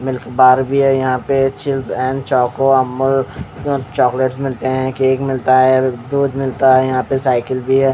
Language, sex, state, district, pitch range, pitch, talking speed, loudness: Hindi, male, Odisha, Khordha, 130-135 Hz, 130 Hz, 175 wpm, -15 LUFS